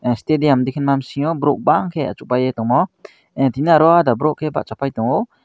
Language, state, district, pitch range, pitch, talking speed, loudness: Kokborok, Tripura, Dhalai, 125-155 Hz, 140 Hz, 155 wpm, -17 LUFS